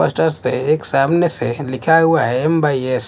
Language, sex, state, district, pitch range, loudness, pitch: Hindi, male, Bihar, West Champaran, 130-165 Hz, -16 LUFS, 155 Hz